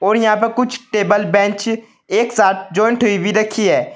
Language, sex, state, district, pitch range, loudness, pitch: Hindi, male, Uttar Pradesh, Saharanpur, 205-230 Hz, -16 LUFS, 215 Hz